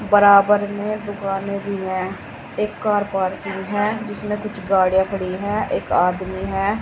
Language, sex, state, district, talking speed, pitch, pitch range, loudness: Hindi, female, Uttar Pradesh, Saharanpur, 150 wpm, 200 Hz, 190-205 Hz, -20 LUFS